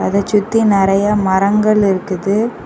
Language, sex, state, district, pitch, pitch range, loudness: Tamil, female, Tamil Nadu, Kanyakumari, 200 Hz, 195-210 Hz, -14 LUFS